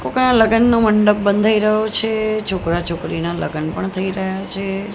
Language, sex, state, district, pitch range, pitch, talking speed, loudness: Gujarati, female, Gujarat, Gandhinagar, 190-215 Hz, 200 Hz, 155 wpm, -17 LUFS